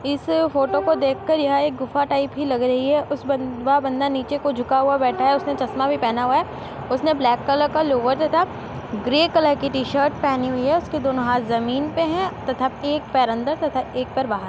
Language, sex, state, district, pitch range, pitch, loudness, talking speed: Hindi, female, Uttar Pradesh, Muzaffarnagar, 255-295 Hz, 275 Hz, -21 LUFS, 210 wpm